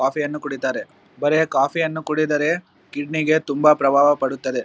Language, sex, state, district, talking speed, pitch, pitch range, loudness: Kannada, male, Karnataka, Bellary, 115 wpm, 145 Hz, 135-155 Hz, -20 LUFS